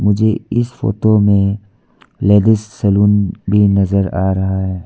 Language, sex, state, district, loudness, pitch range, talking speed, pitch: Hindi, female, Arunachal Pradesh, Lower Dibang Valley, -14 LUFS, 100-105 Hz, 135 wpm, 100 Hz